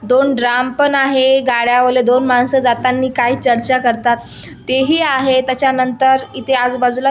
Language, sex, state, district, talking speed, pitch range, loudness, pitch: Marathi, female, Maharashtra, Aurangabad, 135 wpm, 245-265 Hz, -14 LUFS, 255 Hz